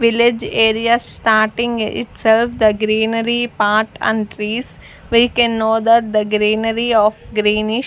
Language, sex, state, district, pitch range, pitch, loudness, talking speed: English, female, Punjab, Fazilka, 215-235 Hz, 225 Hz, -16 LUFS, 135 wpm